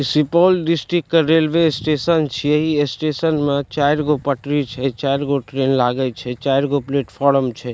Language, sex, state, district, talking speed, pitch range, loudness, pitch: Maithili, male, Bihar, Supaul, 145 wpm, 135-155 Hz, -18 LUFS, 145 Hz